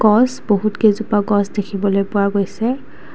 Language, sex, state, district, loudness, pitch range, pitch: Assamese, female, Assam, Kamrup Metropolitan, -17 LUFS, 200-215 Hz, 205 Hz